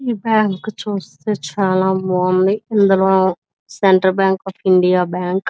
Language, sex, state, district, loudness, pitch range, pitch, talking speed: Telugu, female, Andhra Pradesh, Visakhapatnam, -16 LUFS, 185-205 Hz, 190 Hz, 130 wpm